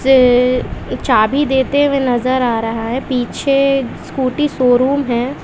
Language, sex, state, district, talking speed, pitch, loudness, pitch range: Hindi, female, Bihar, West Champaran, 120 wpm, 260 Hz, -15 LUFS, 245-275 Hz